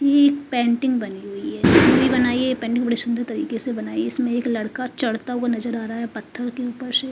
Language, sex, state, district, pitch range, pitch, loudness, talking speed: Hindi, female, Uttar Pradesh, Hamirpur, 230-255 Hz, 240 Hz, -21 LUFS, 260 wpm